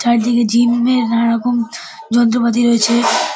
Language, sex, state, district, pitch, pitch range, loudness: Bengali, male, West Bengal, Dakshin Dinajpur, 235 Hz, 235-240 Hz, -14 LUFS